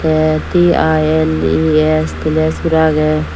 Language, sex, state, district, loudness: Chakma, female, Tripura, Dhalai, -13 LUFS